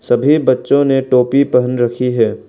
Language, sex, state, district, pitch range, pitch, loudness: Hindi, male, Arunachal Pradesh, Lower Dibang Valley, 125-140 Hz, 125 Hz, -13 LUFS